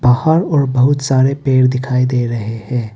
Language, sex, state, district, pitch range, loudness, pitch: Hindi, male, Arunachal Pradesh, Papum Pare, 125-135 Hz, -14 LUFS, 130 Hz